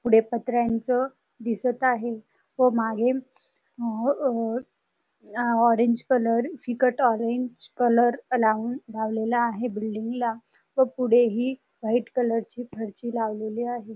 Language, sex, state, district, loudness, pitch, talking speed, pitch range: Marathi, female, Maharashtra, Dhule, -25 LUFS, 235 Hz, 105 wpm, 225-250 Hz